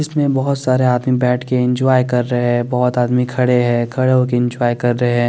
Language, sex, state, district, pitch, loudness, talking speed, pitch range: Hindi, male, Chandigarh, Chandigarh, 125 Hz, -16 LUFS, 240 wpm, 120-130 Hz